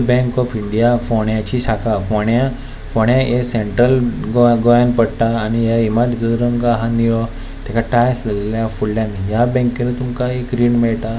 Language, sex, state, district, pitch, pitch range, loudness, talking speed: Konkani, male, Goa, North and South Goa, 115 Hz, 110-120 Hz, -16 LUFS, 160 wpm